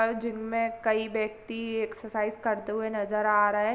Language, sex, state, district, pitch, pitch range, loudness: Hindi, female, Uttar Pradesh, Varanasi, 220 Hz, 215-225 Hz, -29 LUFS